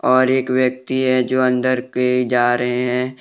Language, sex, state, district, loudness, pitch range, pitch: Hindi, male, Jharkhand, Deoghar, -17 LUFS, 125-130 Hz, 125 Hz